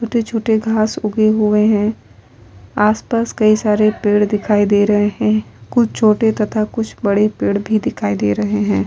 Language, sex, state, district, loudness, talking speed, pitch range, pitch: Hindi, female, Bihar, Vaishali, -16 LUFS, 160 wpm, 205-220 Hz, 215 Hz